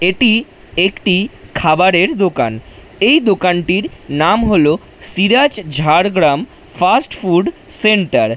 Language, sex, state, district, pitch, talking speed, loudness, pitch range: Bengali, male, West Bengal, Jhargram, 185 Hz, 95 wpm, -14 LUFS, 155-205 Hz